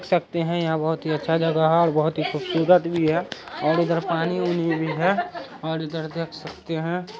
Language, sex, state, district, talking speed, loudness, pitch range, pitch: Hindi, male, Bihar, Araria, 190 wpm, -23 LUFS, 160-170 Hz, 165 Hz